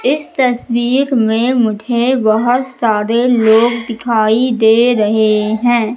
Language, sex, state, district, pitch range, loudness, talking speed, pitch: Hindi, female, Madhya Pradesh, Katni, 220-250 Hz, -13 LUFS, 110 wpm, 235 Hz